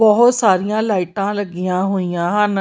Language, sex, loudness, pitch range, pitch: Punjabi, female, -17 LUFS, 185-210 Hz, 200 Hz